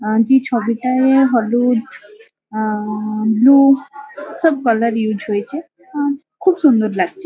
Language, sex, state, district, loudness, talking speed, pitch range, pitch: Bengali, female, West Bengal, Kolkata, -15 LUFS, 115 wpm, 220-285 Hz, 255 Hz